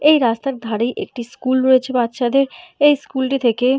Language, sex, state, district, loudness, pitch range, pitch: Bengali, female, West Bengal, Purulia, -18 LUFS, 245-275 Hz, 260 Hz